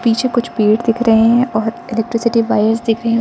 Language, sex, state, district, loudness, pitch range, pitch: Hindi, female, Arunachal Pradesh, Lower Dibang Valley, -15 LUFS, 225-235 Hz, 230 Hz